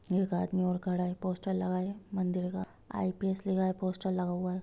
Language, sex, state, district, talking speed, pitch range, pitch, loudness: Hindi, female, Bihar, Sitamarhi, 260 wpm, 180-190 Hz, 185 Hz, -33 LUFS